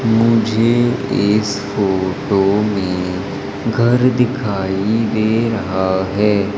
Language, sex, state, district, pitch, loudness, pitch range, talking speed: Hindi, female, Madhya Pradesh, Umaria, 105 Hz, -16 LUFS, 100-115 Hz, 80 wpm